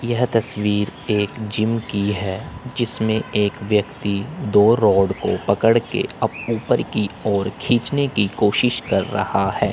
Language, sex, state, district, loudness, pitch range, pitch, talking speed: Hindi, male, Chandigarh, Chandigarh, -20 LUFS, 100-115 Hz, 105 Hz, 150 wpm